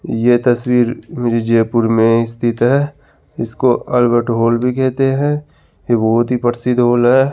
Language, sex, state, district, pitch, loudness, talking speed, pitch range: Hindi, male, Rajasthan, Jaipur, 120 Hz, -15 LUFS, 145 wpm, 115-130 Hz